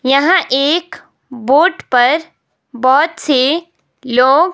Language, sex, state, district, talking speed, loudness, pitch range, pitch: Hindi, female, Himachal Pradesh, Shimla, 90 wpm, -13 LUFS, 260-330 Hz, 280 Hz